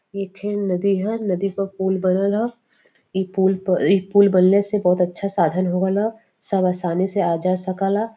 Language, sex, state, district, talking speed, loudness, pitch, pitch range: Bhojpuri, female, Uttar Pradesh, Varanasi, 205 wpm, -20 LUFS, 195 Hz, 185-200 Hz